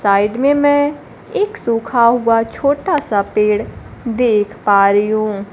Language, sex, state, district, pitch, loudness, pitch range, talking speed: Hindi, female, Bihar, Kaimur, 225 Hz, -15 LUFS, 210-275 Hz, 140 wpm